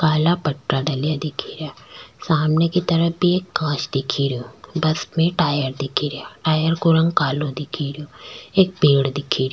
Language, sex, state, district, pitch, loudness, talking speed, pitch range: Rajasthani, female, Rajasthan, Churu, 155 Hz, -20 LUFS, 170 wpm, 140-165 Hz